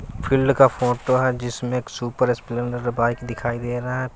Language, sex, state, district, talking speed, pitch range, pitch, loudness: Hindi, male, Bihar, West Champaran, 190 wpm, 120-130 Hz, 125 Hz, -22 LUFS